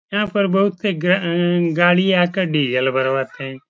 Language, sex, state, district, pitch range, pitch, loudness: Hindi, male, Uttar Pradesh, Etah, 135-190 Hz, 175 Hz, -18 LUFS